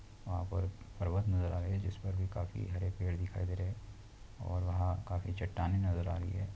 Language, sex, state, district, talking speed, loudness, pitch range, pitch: Hindi, male, Chhattisgarh, Jashpur, 230 wpm, -37 LUFS, 90-100 Hz, 95 Hz